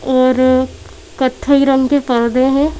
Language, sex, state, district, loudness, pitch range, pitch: Hindi, female, Madhya Pradesh, Bhopal, -13 LUFS, 255-280 Hz, 260 Hz